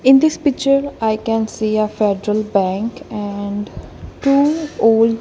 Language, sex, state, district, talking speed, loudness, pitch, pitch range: English, female, Punjab, Kapurthala, 150 wpm, -17 LUFS, 225 Hz, 210-275 Hz